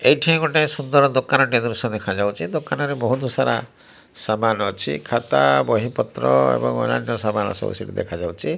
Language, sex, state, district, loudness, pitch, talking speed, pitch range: Odia, male, Odisha, Malkangiri, -20 LUFS, 115 Hz, 145 wpm, 85-135 Hz